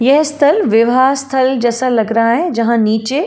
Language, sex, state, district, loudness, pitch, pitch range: Hindi, female, Uttar Pradesh, Jalaun, -13 LUFS, 250 Hz, 230-270 Hz